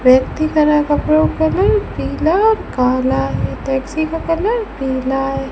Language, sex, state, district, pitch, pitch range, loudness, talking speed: Hindi, female, Rajasthan, Bikaner, 295 Hz, 265-325 Hz, -16 LUFS, 165 wpm